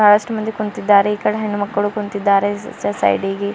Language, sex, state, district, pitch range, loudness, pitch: Kannada, female, Karnataka, Bidar, 200-210 Hz, -18 LUFS, 205 Hz